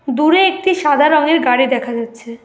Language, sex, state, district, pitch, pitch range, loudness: Bengali, female, West Bengal, Alipurduar, 290 Hz, 245-320 Hz, -13 LUFS